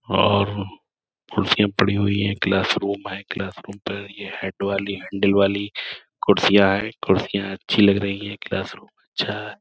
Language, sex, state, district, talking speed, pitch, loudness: Hindi, male, Uttar Pradesh, Budaun, 170 wpm, 100 Hz, -22 LUFS